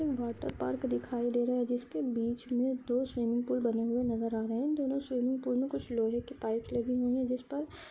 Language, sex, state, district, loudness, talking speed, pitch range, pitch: Hindi, female, Andhra Pradesh, Anantapur, -33 LUFS, 235 wpm, 235-255 Hz, 245 Hz